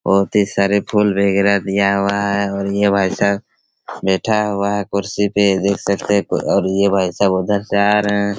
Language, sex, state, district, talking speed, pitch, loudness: Hindi, male, Chhattisgarh, Raigarh, 210 wpm, 100 Hz, -17 LUFS